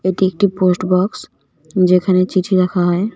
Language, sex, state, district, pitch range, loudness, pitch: Bengali, female, West Bengal, Cooch Behar, 180-190 Hz, -15 LUFS, 185 Hz